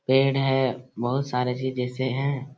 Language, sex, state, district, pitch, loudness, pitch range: Hindi, male, Bihar, Lakhisarai, 130 Hz, -25 LUFS, 125-135 Hz